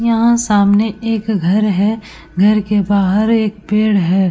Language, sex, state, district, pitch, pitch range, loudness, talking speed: Hindi, female, Uttar Pradesh, Etah, 210 Hz, 200-220 Hz, -14 LUFS, 155 wpm